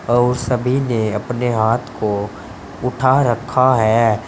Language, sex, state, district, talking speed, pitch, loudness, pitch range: Hindi, male, Uttar Pradesh, Saharanpur, 125 wpm, 120 Hz, -17 LUFS, 110-125 Hz